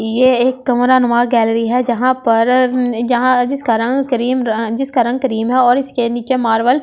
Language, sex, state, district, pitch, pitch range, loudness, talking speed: Hindi, female, Delhi, New Delhi, 245 Hz, 235-255 Hz, -14 LUFS, 195 wpm